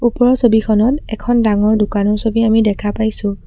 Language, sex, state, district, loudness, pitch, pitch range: Assamese, female, Assam, Sonitpur, -14 LUFS, 220 Hz, 210-235 Hz